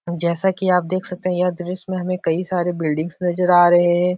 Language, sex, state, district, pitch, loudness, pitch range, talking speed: Hindi, male, Uttar Pradesh, Etah, 180 Hz, -19 LUFS, 175-185 Hz, 245 wpm